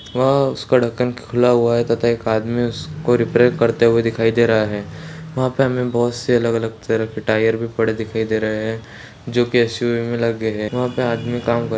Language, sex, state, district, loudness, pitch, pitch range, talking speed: Hindi, male, Bihar, Darbhanga, -18 LUFS, 115 Hz, 115-120 Hz, 225 wpm